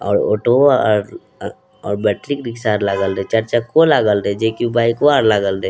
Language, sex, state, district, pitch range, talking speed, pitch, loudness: Maithili, male, Bihar, Madhepura, 100-120 Hz, 190 wpm, 110 Hz, -16 LUFS